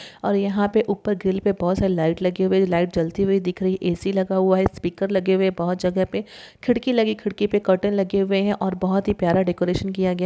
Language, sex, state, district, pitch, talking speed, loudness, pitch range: Hindi, female, Andhra Pradesh, Guntur, 190 Hz, 265 wpm, -21 LUFS, 180-200 Hz